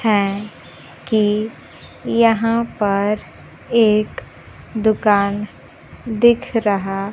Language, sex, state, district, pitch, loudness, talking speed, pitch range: Hindi, female, Bihar, Kaimur, 210 Hz, -18 LUFS, 65 wpm, 200-225 Hz